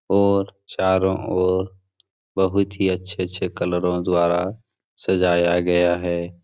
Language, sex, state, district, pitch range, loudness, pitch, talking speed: Hindi, male, Bihar, Supaul, 90-95 Hz, -21 LUFS, 95 Hz, 100 wpm